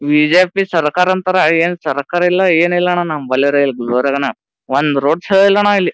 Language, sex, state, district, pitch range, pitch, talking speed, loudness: Kannada, male, Karnataka, Gulbarga, 140-180 Hz, 165 Hz, 180 wpm, -14 LUFS